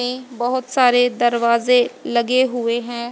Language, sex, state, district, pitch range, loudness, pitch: Hindi, female, Haryana, Jhajjar, 240-250 Hz, -18 LUFS, 245 Hz